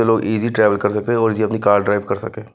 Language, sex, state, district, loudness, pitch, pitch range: Hindi, male, Himachal Pradesh, Shimla, -17 LUFS, 110 Hz, 105-110 Hz